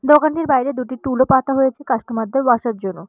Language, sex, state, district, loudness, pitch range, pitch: Bengali, female, West Bengal, Malda, -18 LUFS, 240-270 Hz, 260 Hz